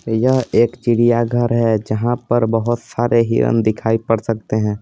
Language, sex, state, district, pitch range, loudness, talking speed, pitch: Hindi, male, Bihar, Patna, 115-120 Hz, -17 LUFS, 175 wpm, 115 Hz